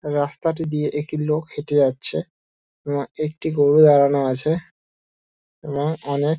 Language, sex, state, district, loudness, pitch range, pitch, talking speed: Bengali, male, West Bengal, Dakshin Dinajpur, -20 LUFS, 140-155 Hz, 145 Hz, 120 wpm